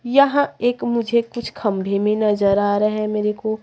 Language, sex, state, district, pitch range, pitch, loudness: Hindi, female, Chhattisgarh, Raipur, 210-240 Hz, 215 Hz, -19 LUFS